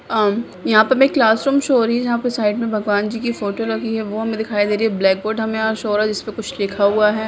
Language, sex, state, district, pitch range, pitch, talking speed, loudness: Hindi, female, Chhattisgarh, Raigarh, 210-230 Hz, 220 Hz, 320 wpm, -18 LUFS